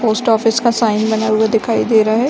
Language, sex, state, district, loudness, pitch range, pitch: Hindi, female, Bihar, Saran, -14 LUFS, 220-230 Hz, 225 Hz